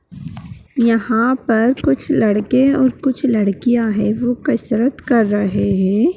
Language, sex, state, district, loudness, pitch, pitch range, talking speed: Magahi, female, Bihar, Gaya, -16 LUFS, 235 Hz, 215-260 Hz, 125 wpm